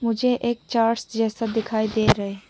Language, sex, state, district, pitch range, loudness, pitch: Hindi, female, Mizoram, Aizawl, 220-235 Hz, -23 LUFS, 225 Hz